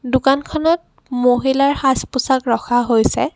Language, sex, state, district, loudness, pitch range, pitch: Assamese, female, Assam, Kamrup Metropolitan, -17 LUFS, 245-275 Hz, 265 Hz